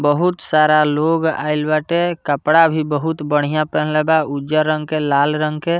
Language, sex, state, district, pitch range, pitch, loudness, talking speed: Bhojpuri, male, Bihar, Muzaffarpur, 150-160 Hz, 155 Hz, -17 LUFS, 175 wpm